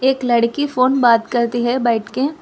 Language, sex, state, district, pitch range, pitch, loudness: Hindi, female, Telangana, Hyderabad, 235-265 Hz, 245 Hz, -16 LUFS